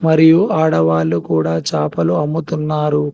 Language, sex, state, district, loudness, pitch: Telugu, male, Telangana, Hyderabad, -15 LUFS, 150 Hz